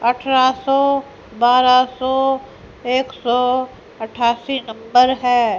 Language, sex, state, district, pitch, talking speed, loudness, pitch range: Hindi, female, Haryana, Jhajjar, 255 Hz, 95 wpm, -17 LUFS, 240-265 Hz